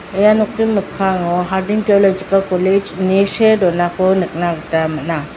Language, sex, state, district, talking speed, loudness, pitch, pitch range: Garo, female, Meghalaya, West Garo Hills, 135 wpm, -15 LUFS, 190 Hz, 175-200 Hz